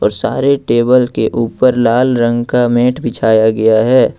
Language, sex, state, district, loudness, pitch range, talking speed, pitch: Hindi, male, Jharkhand, Ranchi, -12 LUFS, 115-125 Hz, 160 wpm, 120 Hz